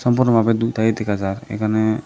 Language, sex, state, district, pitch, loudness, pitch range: Bengali, male, Tripura, Dhalai, 110 Hz, -19 LUFS, 110-115 Hz